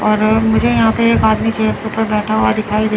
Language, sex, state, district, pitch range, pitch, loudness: Hindi, female, Chandigarh, Chandigarh, 215-225 Hz, 220 Hz, -14 LUFS